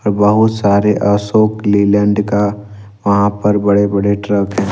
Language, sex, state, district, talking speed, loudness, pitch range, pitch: Hindi, male, Jharkhand, Ranchi, 140 wpm, -13 LUFS, 100-105 Hz, 105 Hz